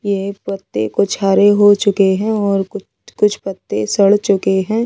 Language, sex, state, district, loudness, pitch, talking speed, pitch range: Hindi, female, Delhi, New Delhi, -15 LUFS, 200 Hz, 175 wpm, 195-205 Hz